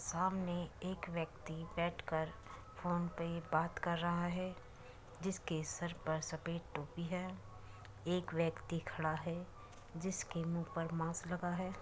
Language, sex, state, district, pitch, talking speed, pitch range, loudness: Hindi, female, Uttar Pradesh, Muzaffarnagar, 170 Hz, 140 wpm, 160-175 Hz, -41 LUFS